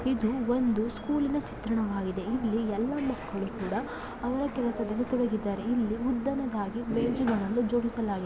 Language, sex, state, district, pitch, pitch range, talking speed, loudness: Kannada, female, Karnataka, Belgaum, 235 Hz, 215-250 Hz, 110 wpm, -30 LUFS